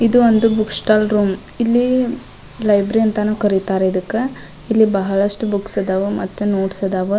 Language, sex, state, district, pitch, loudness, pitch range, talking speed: Kannada, female, Karnataka, Dharwad, 210 Hz, -17 LUFS, 195-225 Hz, 150 wpm